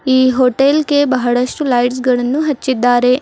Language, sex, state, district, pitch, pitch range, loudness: Kannada, female, Karnataka, Bidar, 255 Hz, 245-280 Hz, -14 LUFS